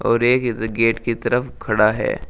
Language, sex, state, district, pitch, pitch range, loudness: Hindi, male, Uttar Pradesh, Shamli, 115 Hz, 110-120 Hz, -19 LUFS